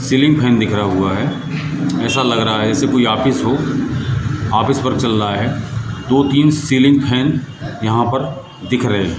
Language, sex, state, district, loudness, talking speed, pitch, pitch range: Hindi, male, Madhya Pradesh, Katni, -16 LUFS, 185 wpm, 130 Hz, 115-140 Hz